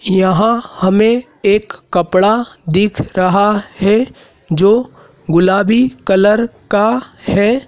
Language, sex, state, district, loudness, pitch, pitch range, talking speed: Hindi, male, Madhya Pradesh, Dhar, -13 LUFS, 205 Hz, 190-225 Hz, 95 wpm